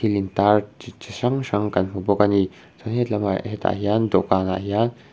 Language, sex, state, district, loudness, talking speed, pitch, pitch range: Mizo, male, Mizoram, Aizawl, -22 LUFS, 210 wpm, 105 Hz, 95-110 Hz